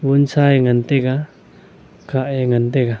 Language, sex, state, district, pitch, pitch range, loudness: Wancho, male, Arunachal Pradesh, Longding, 135 Hz, 125-140 Hz, -17 LUFS